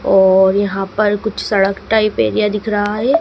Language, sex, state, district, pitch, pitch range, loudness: Hindi, female, Madhya Pradesh, Dhar, 205 Hz, 195-215 Hz, -15 LUFS